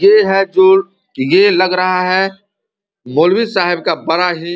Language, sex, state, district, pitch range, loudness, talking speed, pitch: Hindi, male, Bihar, Vaishali, 180-205 Hz, -13 LUFS, 170 wpm, 190 Hz